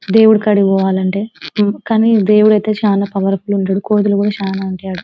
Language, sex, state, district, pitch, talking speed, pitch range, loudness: Telugu, female, Telangana, Nalgonda, 200 Hz, 165 wpm, 195-210 Hz, -14 LUFS